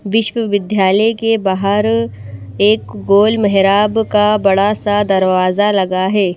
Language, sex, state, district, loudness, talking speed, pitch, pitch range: Hindi, female, Madhya Pradesh, Bhopal, -13 LUFS, 115 wpm, 200 Hz, 185-210 Hz